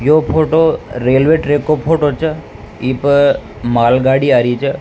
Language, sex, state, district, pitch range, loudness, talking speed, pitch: Rajasthani, male, Rajasthan, Nagaur, 125-155 Hz, -13 LUFS, 160 wpm, 140 Hz